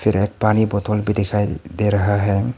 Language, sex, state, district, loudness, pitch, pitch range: Hindi, male, Arunachal Pradesh, Papum Pare, -19 LUFS, 105 Hz, 100-105 Hz